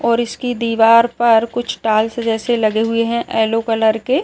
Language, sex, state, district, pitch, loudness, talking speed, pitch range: Hindi, male, Maharashtra, Nagpur, 230 Hz, -16 LUFS, 200 wpm, 225-235 Hz